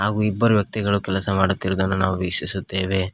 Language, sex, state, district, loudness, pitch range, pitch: Kannada, male, Karnataka, Koppal, -19 LUFS, 95-100 Hz, 95 Hz